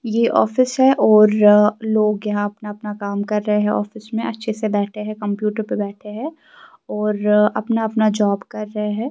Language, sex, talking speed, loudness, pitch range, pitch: Urdu, female, 180 wpm, -18 LUFS, 210-220 Hz, 210 Hz